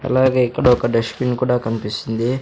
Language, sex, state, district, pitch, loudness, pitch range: Telugu, male, Andhra Pradesh, Sri Satya Sai, 125 Hz, -18 LUFS, 115-130 Hz